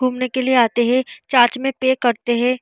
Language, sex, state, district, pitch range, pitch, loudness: Hindi, female, Bihar, Vaishali, 240-260 Hz, 255 Hz, -17 LUFS